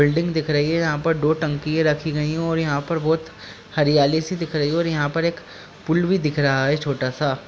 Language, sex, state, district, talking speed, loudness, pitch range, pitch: Hindi, male, Bihar, Jamui, 250 wpm, -21 LUFS, 145-165 Hz, 155 Hz